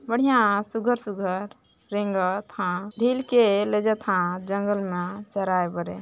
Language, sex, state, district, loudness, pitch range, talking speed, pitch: Hindi, female, Chhattisgarh, Balrampur, -24 LUFS, 185-220 Hz, 100 wpm, 205 Hz